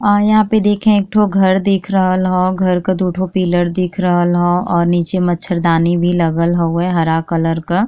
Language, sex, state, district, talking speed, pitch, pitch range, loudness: Bhojpuri, female, Uttar Pradesh, Deoria, 200 wpm, 180 Hz, 175-190 Hz, -14 LUFS